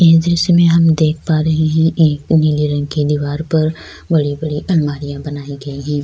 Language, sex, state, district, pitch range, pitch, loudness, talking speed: Urdu, female, Bihar, Saharsa, 145-160 Hz, 155 Hz, -15 LUFS, 200 wpm